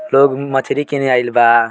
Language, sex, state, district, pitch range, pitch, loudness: Bhojpuri, male, Bihar, Muzaffarpur, 120-140 Hz, 135 Hz, -14 LUFS